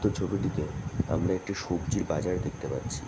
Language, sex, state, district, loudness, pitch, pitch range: Bengali, male, West Bengal, Jhargram, -31 LUFS, 95 Hz, 90-100 Hz